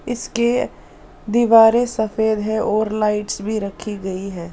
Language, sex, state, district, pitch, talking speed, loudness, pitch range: Hindi, female, Punjab, Pathankot, 220 Hz, 120 wpm, -19 LUFS, 210-230 Hz